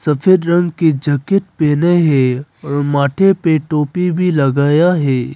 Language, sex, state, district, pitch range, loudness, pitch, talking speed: Hindi, male, Arunachal Pradesh, Papum Pare, 140-175 Hz, -14 LUFS, 155 Hz, 145 wpm